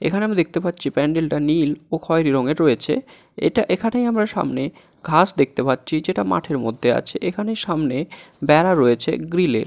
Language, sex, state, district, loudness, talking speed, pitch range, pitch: Bengali, male, West Bengal, Jalpaiguri, -20 LUFS, 160 wpm, 150-185 Hz, 165 Hz